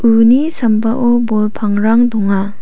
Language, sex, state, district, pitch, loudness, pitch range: Garo, female, Meghalaya, South Garo Hills, 225 Hz, -13 LUFS, 210-240 Hz